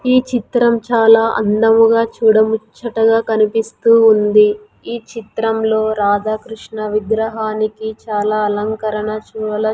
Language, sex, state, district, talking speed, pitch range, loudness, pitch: Telugu, female, Andhra Pradesh, Sri Satya Sai, 90 wpm, 215-225 Hz, -15 LUFS, 220 Hz